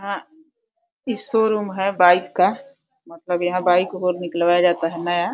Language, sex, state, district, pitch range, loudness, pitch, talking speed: Hindi, female, Uttar Pradesh, Deoria, 175-230 Hz, -20 LUFS, 185 Hz, 155 wpm